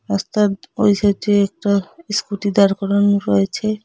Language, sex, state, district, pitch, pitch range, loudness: Bengali, female, West Bengal, Cooch Behar, 200 Hz, 195-210 Hz, -18 LUFS